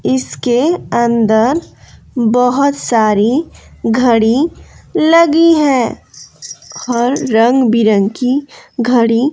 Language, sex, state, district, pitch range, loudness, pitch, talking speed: Hindi, female, Bihar, West Champaran, 225-280 Hz, -13 LUFS, 245 Hz, 70 wpm